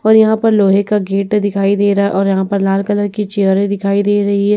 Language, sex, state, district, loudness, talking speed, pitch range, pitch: Hindi, female, Uttar Pradesh, Etah, -14 LUFS, 290 wpm, 195-205 Hz, 200 Hz